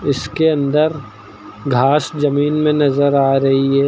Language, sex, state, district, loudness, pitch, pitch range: Hindi, male, Uttar Pradesh, Lucknow, -15 LUFS, 140 Hz, 135-150 Hz